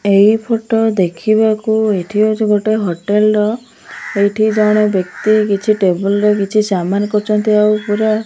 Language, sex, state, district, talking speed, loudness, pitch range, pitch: Odia, female, Odisha, Malkangiri, 145 wpm, -14 LUFS, 200-215 Hz, 210 Hz